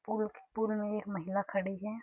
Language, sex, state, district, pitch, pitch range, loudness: Hindi, female, Chhattisgarh, Sarguja, 210 Hz, 195-220 Hz, -36 LUFS